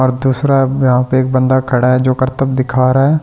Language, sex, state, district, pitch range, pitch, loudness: Hindi, male, Delhi, New Delhi, 130-135 Hz, 130 Hz, -13 LUFS